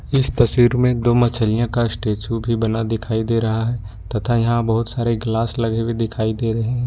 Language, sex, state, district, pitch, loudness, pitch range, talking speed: Hindi, male, Jharkhand, Ranchi, 115 Hz, -19 LUFS, 110-120 Hz, 220 wpm